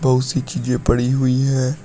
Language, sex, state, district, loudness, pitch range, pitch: Hindi, male, Uttar Pradesh, Shamli, -19 LUFS, 125-135 Hz, 130 Hz